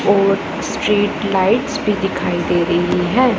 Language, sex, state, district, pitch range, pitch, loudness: Hindi, female, Punjab, Pathankot, 190-215 Hz, 200 Hz, -17 LUFS